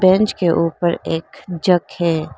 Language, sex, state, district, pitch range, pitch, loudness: Hindi, female, Arunachal Pradesh, Lower Dibang Valley, 165-185 Hz, 175 Hz, -18 LUFS